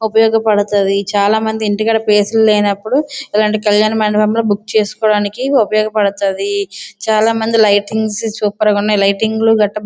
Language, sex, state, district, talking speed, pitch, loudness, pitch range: Telugu, female, Andhra Pradesh, Srikakulam, 120 wpm, 215 Hz, -14 LUFS, 205-220 Hz